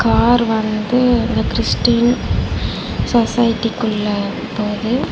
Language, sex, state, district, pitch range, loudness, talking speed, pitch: Tamil, female, Tamil Nadu, Chennai, 215-240 Hz, -17 LUFS, 80 wpm, 230 Hz